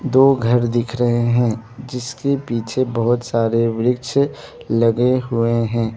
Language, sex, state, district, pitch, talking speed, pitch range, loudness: Hindi, male, Arunachal Pradesh, Lower Dibang Valley, 120 Hz, 130 wpm, 115-125 Hz, -18 LUFS